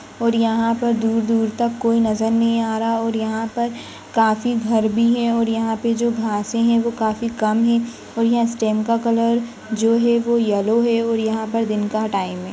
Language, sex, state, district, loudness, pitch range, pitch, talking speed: Hindi, female, Uttar Pradesh, Jyotiba Phule Nagar, -19 LUFS, 220-235 Hz, 230 Hz, 210 wpm